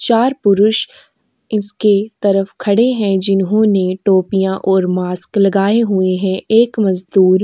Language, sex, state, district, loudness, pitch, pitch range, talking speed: Hindi, female, Uttar Pradesh, Jyotiba Phule Nagar, -14 LUFS, 195 Hz, 190-215 Hz, 130 wpm